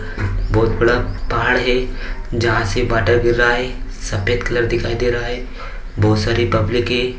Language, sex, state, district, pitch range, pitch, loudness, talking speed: Hindi, male, Bihar, Purnia, 110-120 Hz, 120 Hz, -18 LUFS, 165 wpm